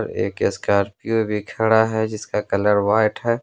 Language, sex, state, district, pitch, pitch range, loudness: Hindi, male, Jharkhand, Ranchi, 110 Hz, 100-110 Hz, -20 LUFS